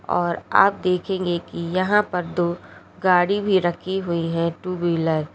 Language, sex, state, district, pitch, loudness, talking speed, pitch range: Hindi, female, Uttar Pradesh, Lalitpur, 180 Hz, -21 LUFS, 170 wpm, 170-185 Hz